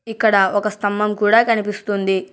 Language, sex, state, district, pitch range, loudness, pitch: Telugu, male, Telangana, Hyderabad, 200-220 Hz, -17 LUFS, 210 Hz